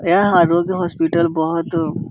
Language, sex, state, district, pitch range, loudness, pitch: Hindi, male, Bihar, Jahanabad, 165-175 Hz, -17 LUFS, 170 Hz